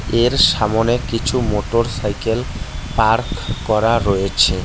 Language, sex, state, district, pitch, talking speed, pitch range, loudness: Bengali, male, West Bengal, Cooch Behar, 110 Hz, 105 wpm, 100-115 Hz, -17 LUFS